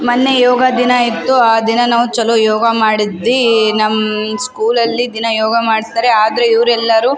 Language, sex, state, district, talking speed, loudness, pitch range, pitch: Kannada, female, Karnataka, Raichur, 165 wpm, -12 LUFS, 220-245 Hz, 230 Hz